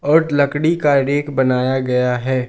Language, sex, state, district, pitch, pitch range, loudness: Hindi, male, Jharkhand, Garhwa, 140 Hz, 130-145 Hz, -16 LUFS